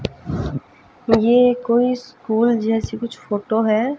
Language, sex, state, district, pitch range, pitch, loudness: Hindi, female, Haryana, Jhajjar, 225-245 Hz, 235 Hz, -19 LUFS